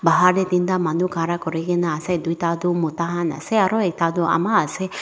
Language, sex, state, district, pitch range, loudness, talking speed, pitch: Nagamese, female, Nagaland, Dimapur, 165-180 Hz, -21 LUFS, 215 wpm, 175 Hz